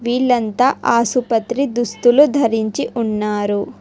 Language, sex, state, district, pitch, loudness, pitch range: Telugu, female, Telangana, Hyderabad, 235 Hz, -16 LUFS, 220-250 Hz